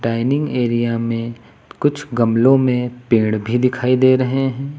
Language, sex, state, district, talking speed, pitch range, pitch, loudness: Hindi, male, Uttar Pradesh, Lucknow, 150 wpm, 115-135 Hz, 125 Hz, -17 LUFS